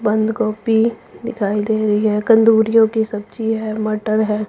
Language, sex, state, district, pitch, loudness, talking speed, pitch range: Hindi, female, Punjab, Pathankot, 220 Hz, -17 LUFS, 160 wpm, 215-225 Hz